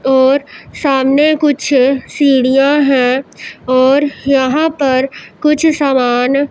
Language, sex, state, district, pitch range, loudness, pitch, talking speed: Hindi, male, Punjab, Pathankot, 260-290 Hz, -12 LUFS, 275 Hz, 90 wpm